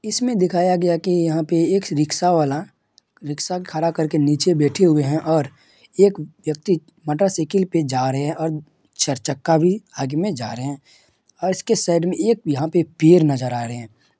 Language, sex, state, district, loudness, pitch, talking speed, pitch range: Hindi, male, Bihar, Madhepura, -20 LUFS, 160 Hz, 185 wpm, 145-180 Hz